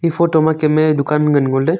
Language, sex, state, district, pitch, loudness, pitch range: Wancho, male, Arunachal Pradesh, Longding, 155 Hz, -14 LUFS, 150-160 Hz